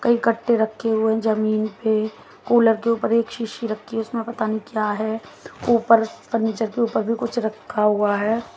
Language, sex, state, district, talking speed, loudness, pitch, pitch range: Hindi, female, Haryana, Jhajjar, 190 wpm, -21 LUFS, 225 Hz, 220-230 Hz